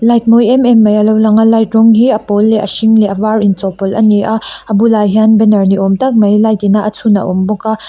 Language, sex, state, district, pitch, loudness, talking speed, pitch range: Mizo, female, Mizoram, Aizawl, 215 Hz, -10 LUFS, 305 wpm, 205-225 Hz